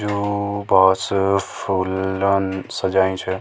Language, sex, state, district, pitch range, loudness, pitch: Garhwali, male, Uttarakhand, Tehri Garhwal, 95-100 Hz, -19 LUFS, 95 Hz